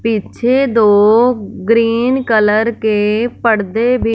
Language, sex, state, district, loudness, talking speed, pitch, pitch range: Hindi, female, Punjab, Fazilka, -13 LUFS, 100 wpm, 225 Hz, 215-240 Hz